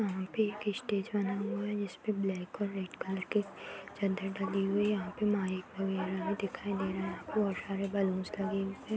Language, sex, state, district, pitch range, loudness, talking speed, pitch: Hindi, female, Uttar Pradesh, Hamirpur, 190-205 Hz, -35 LUFS, 225 wpm, 195 Hz